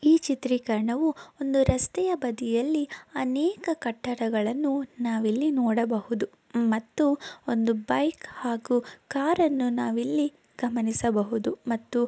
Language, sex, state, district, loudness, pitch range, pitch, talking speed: Kannada, female, Karnataka, Bellary, -27 LUFS, 230-295 Hz, 245 Hz, 80 wpm